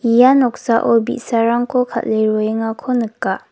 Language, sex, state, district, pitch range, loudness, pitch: Garo, female, Meghalaya, West Garo Hills, 225-245 Hz, -16 LUFS, 230 Hz